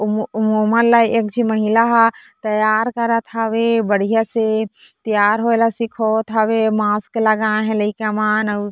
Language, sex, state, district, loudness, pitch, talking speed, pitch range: Chhattisgarhi, female, Chhattisgarh, Korba, -17 LUFS, 220 Hz, 150 wpm, 215-230 Hz